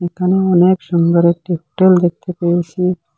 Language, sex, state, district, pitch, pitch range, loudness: Bengali, male, Assam, Hailakandi, 175 Hz, 170-185 Hz, -14 LUFS